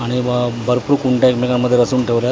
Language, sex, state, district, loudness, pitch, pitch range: Marathi, male, Maharashtra, Mumbai Suburban, -16 LUFS, 125 Hz, 120-125 Hz